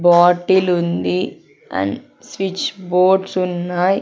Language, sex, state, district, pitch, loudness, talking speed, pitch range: Telugu, female, Andhra Pradesh, Sri Satya Sai, 180 Hz, -18 LUFS, 90 wpm, 175-190 Hz